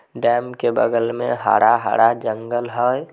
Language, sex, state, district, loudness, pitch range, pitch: Maithili, male, Bihar, Samastipur, -18 LUFS, 115-120 Hz, 120 Hz